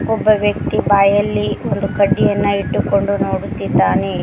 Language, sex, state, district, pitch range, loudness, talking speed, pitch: Kannada, female, Karnataka, Koppal, 190-205 Hz, -16 LUFS, 100 wpm, 200 Hz